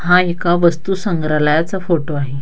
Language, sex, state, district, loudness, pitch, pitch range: Marathi, female, Maharashtra, Dhule, -16 LUFS, 170 Hz, 155-180 Hz